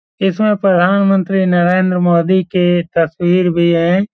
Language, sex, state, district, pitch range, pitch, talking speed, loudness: Hindi, male, Bihar, Supaul, 175-190 Hz, 180 Hz, 115 wpm, -13 LUFS